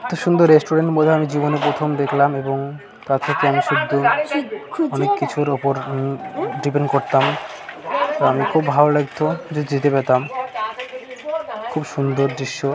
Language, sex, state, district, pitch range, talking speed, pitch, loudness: Bengali, male, West Bengal, Jhargram, 140-165 Hz, 135 wpm, 145 Hz, -19 LUFS